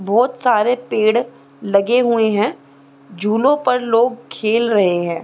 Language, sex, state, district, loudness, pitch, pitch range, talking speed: Hindi, female, Bihar, Saran, -16 LUFS, 225 Hz, 200-245 Hz, 135 wpm